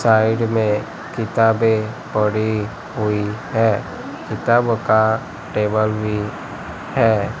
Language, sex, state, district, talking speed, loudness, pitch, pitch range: Hindi, male, Gujarat, Gandhinagar, 90 wpm, -19 LUFS, 110 Hz, 105-115 Hz